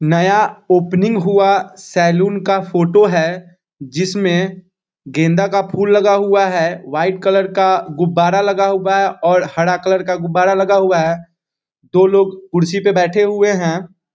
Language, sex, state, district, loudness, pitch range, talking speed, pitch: Hindi, male, Bihar, Muzaffarpur, -15 LUFS, 175-195 Hz, 155 wpm, 185 Hz